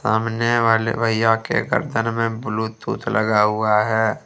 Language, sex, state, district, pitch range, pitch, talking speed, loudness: Hindi, male, Jharkhand, Ranchi, 110-115 Hz, 115 Hz, 140 wpm, -20 LUFS